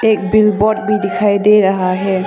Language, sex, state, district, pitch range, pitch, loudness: Hindi, female, Arunachal Pradesh, Longding, 195-210 Hz, 205 Hz, -13 LUFS